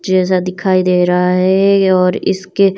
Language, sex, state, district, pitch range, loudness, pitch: Hindi, female, Himachal Pradesh, Shimla, 180-190 Hz, -13 LUFS, 185 Hz